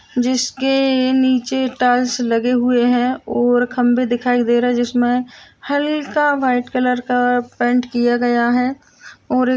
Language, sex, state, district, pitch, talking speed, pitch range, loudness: Hindi, female, Chhattisgarh, Kabirdham, 250 Hz, 140 wpm, 245-255 Hz, -17 LUFS